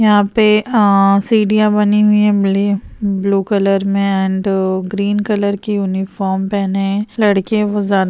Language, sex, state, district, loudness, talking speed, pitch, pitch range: Hindi, female, Bihar, Kishanganj, -14 LUFS, 165 wpm, 200 Hz, 195-210 Hz